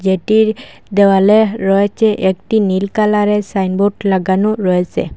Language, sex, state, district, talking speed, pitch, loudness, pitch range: Bengali, female, Assam, Hailakandi, 105 wpm, 200 Hz, -14 LUFS, 190-215 Hz